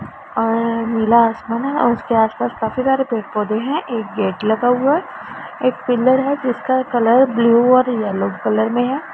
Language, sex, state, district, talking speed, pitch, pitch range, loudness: Hindi, female, Punjab, Pathankot, 185 wpm, 235 Hz, 225-260 Hz, -17 LUFS